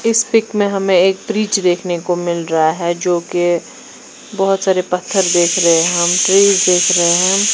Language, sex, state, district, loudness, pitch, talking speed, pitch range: Hindi, female, Punjab, Fazilka, -14 LUFS, 180 Hz, 205 wpm, 175-195 Hz